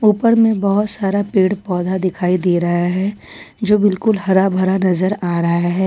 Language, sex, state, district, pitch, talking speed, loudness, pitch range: Hindi, female, Jharkhand, Ranchi, 190 Hz, 185 wpm, -16 LUFS, 180-205 Hz